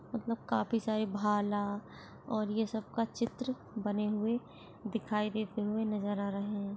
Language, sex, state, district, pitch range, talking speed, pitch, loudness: Hindi, female, Chhattisgarh, Jashpur, 205-225 Hz, 160 wpm, 215 Hz, -35 LUFS